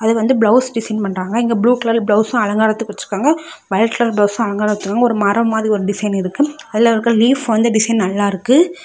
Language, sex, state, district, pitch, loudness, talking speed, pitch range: Tamil, female, Tamil Nadu, Kanyakumari, 225 Hz, -15 LUFS, 195 wpm, 210-235 Hz